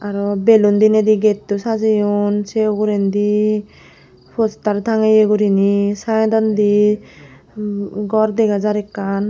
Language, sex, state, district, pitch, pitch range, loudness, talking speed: Chakma, female, Tripura, Unakoti, 210 Hz, 205-215 Hz, -16 LUFS, 90 wpm